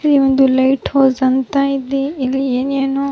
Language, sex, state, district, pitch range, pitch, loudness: Kannada, female, Karnataka, Raichur, 260-275 Hz, 270 Hz, -15 LUFS